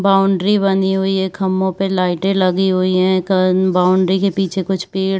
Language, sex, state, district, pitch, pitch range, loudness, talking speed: Hindi, female, Bihar, Saharsa, 190 Hz, 185-195 Hz, -16 LUFS, 195 wpm